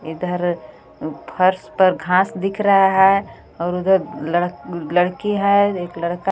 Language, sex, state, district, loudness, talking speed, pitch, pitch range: Hindi, female, Jharkhand, Garhwa, -18 LUFS, 135 wpm, 180 Hz, 175-195 Hz